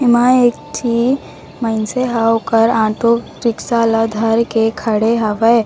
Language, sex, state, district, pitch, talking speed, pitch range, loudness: Chhattisgarhi, female, Chhattisgarh, Raigarh, 230 Hz, 140 wpm, 225-235 Hz, -15 LUFS